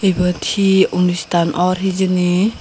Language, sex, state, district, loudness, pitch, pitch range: Chakma, female, Tripura, Unakoti, -16 LUFS, 180 Hz, 180-190 Hz